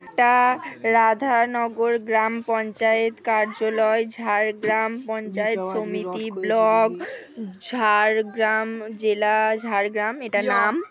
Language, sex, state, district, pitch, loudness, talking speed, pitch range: Bengali, female, West Bengal, Jhargram, 220 Hz, -21 LUFS, 75 wpm, 215-225 Hz